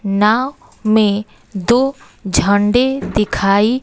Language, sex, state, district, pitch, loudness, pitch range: Hindi, female, Bihar, West Champaran, 215 Hz, -15 LUFS, 200-245 Hz